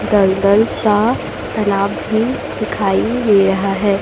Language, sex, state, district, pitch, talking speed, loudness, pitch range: Hindi, female, Chhattisgarh, Raipur, 205 Hz, 120 wpm, -15 LUFS, 195-220 Hz